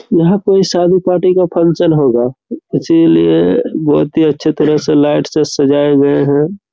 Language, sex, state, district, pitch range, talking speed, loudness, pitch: Hindi, male, Chhattisgarh, Raigarh, 145-175 Hz, 160 wpm, -11 LUFS, 155 Hz